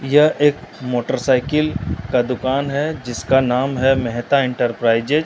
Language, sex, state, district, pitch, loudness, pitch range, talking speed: Hindi, male, Bihar, Katihar, 130 Hz, -18 LUFS, 125-145 Hz, 135 wpm